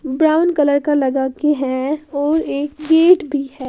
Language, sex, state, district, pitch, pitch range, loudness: Hindi, female, Haryana, Jhajjar, 295 Hz, 275-315 Hz, -16 LUFS